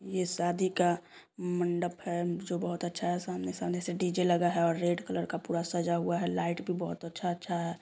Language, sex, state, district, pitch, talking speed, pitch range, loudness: Hindi, female, Bihar, Sitamarhi, 175 Hz, 205 wpm, 170-180 Hz, -32 LUFS